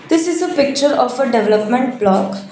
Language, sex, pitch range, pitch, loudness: English, female, 215-285 Hz, 250 Hz, -15 LUFS